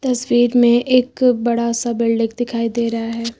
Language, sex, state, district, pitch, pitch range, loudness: Hindi, female, Uttar Pradesh, Lucknow, 235 Hz, 230-245 Hz, -17 LUFS